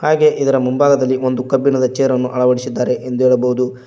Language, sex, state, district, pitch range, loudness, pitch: Kannada, male, Karnataka, Koppal, 125-135 Hz, -15 LUFS, 130 Hz